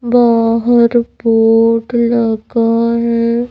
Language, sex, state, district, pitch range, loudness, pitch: Hindi, female, Madhya Pradesh, Bhopal, 230-235 Hz, -12 LUFS, 235 Hz